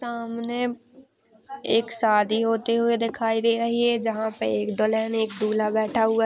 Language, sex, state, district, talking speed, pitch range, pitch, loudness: Hindi, female, Maharashtra, Pune, 175 wpm, 220-235 Hz, 225 Hz, -24 LUFS